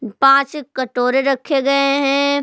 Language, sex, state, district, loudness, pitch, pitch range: Hindi, female, Jharkhand, Palamu, -16 LUFS, 275 Hz, 260-280 Hz